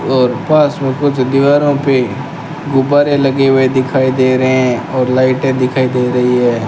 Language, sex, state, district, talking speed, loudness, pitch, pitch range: Hindi, male, Rajasthan, Bikaner, 170 wpm, -12 LUFS, 130 Hz, 130-140 Hz